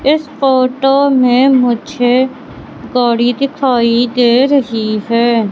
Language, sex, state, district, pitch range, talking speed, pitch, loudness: Hindi, female, Madhya Pradesh, Katni, 235-270 Hz, 100 wpm, 250 Hz, -12 LUFS